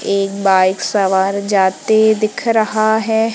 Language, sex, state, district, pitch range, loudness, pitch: Hindi, female, Madhya Pradesh, Umaria, 195-220 Hz, -14 LUFS, 205 Hz